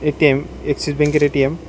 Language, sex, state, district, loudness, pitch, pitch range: Bengali, male, Tripura, West Tripura, -17 LUFS, 150 Hz, 145-150 Hz